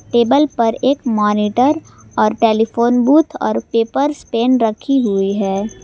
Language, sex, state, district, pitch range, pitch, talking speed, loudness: Hindi, female, Jharkhand, Garhwa, 220-270 Hz, 235 Hz, 135 wpm, -15 LUFS